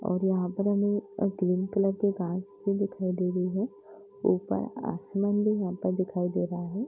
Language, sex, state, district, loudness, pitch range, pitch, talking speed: Hindi, female, Bihar, Bhagalpur, -29 LUFS, 180-200 Hz, 195 Hz, 190 wpm